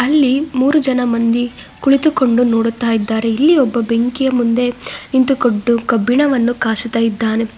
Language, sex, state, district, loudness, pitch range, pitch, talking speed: Kannada, female, Karnataka, Bangalore, -15 LUFS, 230-265 Hz, 240 Hz, 120 wpm